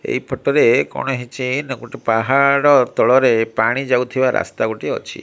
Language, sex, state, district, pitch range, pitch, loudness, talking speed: Odia, male, Odisha, Malkangiri, 115-135 Hz, 125 Hz, -17 LUFS, 135 wpm